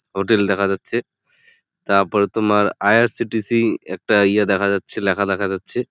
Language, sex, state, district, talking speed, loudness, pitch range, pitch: Bengali, male, West Bengal, Jalpaiguri, 170 wpm, -18 LUFS, 100-110 Hz, 100 Hz